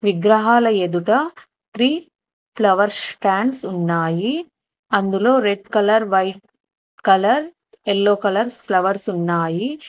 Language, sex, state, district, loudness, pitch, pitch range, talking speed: Telugu, female, Telangana, Hyderabad, -18 LUFS, 205 Hz, 195-240 Hz, 90 wpm